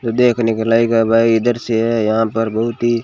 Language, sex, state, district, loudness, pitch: Hindi, male, Rajasthan, Bikaner, -15 LUFS, 115 Hz